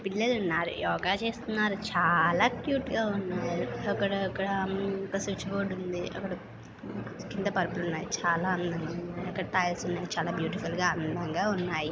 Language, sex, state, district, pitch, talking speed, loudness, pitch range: Telugu, female, Andhra Pradesh, Srikakulam, 185 Hz, 140 wpm, -30 LUFS, 175-200 Hz